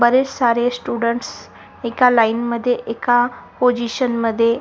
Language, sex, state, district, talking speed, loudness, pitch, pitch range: Marathi, female, Maharashtra, Sindhudurg, 115 wpm, -18 LUFS, 240 Hz, 235-245 Hz